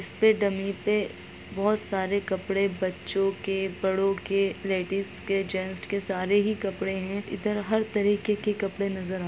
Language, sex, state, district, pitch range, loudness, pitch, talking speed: Hindi, female, Bihar, Gaya, 195-205 Hz, -28 LUFS, 195 Hz, 140 wpm